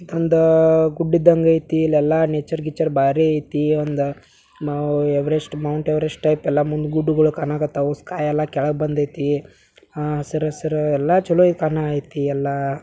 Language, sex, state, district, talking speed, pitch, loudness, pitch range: Kannada, male, Karnataka, Belgaum, 125 wpm, 150 Hz, -19 LUFS, 145-160 Hz